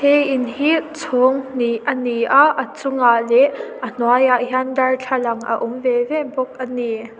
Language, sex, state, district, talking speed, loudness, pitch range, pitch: Mizo, female, Mizoram, Aizawl, 165 wpm, -18 LUFS, 240-270 Hz, 255 Hz